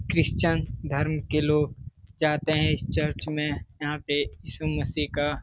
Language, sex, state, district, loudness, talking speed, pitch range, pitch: Hindi, male, Bihar, Lakhisarai, -26 LUFS, 165 wpm, 140-150 Hz, 150 Hz